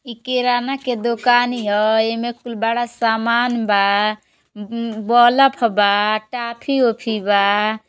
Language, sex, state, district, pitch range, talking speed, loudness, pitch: Bhojpuri, female, Uttar Pradesh, Gorakhpur, 215-245 Hz, 120 wpm, -17 LUFS, 230 Hz